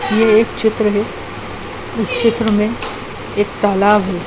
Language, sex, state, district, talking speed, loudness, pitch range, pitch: Hindi, female, Bihar, Saran, 140 wpm, -16 LUFS, 205-220 Hz, 210 Hz